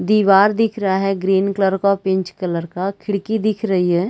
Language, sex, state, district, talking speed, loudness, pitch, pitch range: Hindi, female, Chhattisgarh, Bilaspur, 220 wpm, -18 LUFS, 195 Hz, 190-205 Hz